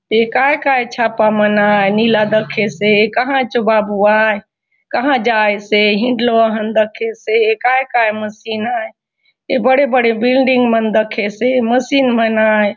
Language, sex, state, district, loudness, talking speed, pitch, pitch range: Halbi, female, Chhattisgarh, Bastar, -14 LUFS, 150 wpm, 225 Hz, 215-255 Hz